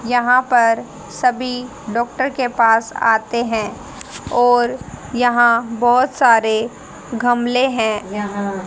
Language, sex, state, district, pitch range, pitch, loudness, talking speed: Hindi, female, Haryana, Rohtak, 225-245 Hz, 240 Hz, -17 LUFS, 105 wpm